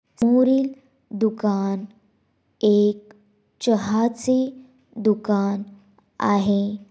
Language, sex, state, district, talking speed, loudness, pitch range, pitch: Marathi, female, Maharashtra, Dhule, 50 wpm, -22 LUFS, 205-240 Hz, 210 Hz